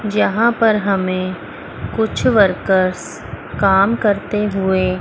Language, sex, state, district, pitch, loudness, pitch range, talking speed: Hindi, female, Chandigarh, Chandigarh, 200 Hz, -16 LUFS, 185-210 Hz, 95 wpm